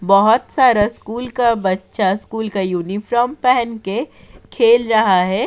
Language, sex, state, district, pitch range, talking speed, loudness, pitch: Hindi, female, Uttar Pradesh, Jyotiba Phule Nagar, 195-240 Hz, 140 wpm, -16 LUFS, 225 Hz